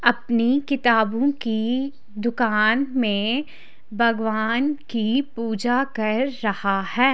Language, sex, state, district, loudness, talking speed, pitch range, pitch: Hindi, female, Haryana, Charkhi Dadri, -22 LUFS, 90 wpm, 220-265 Hz, 235 Hz